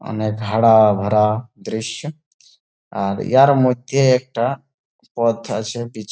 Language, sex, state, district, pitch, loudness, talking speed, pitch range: Bengali, male, West Bengal, Jalpaiguri, 115 Hz, -18 LUFS, 115 wpm, 110-135 Hz